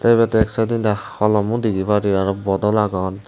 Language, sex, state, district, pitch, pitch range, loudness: Chakma, male, Tripura, Unakoti, 105 Hz, 100-110 Hz, -18 LUFS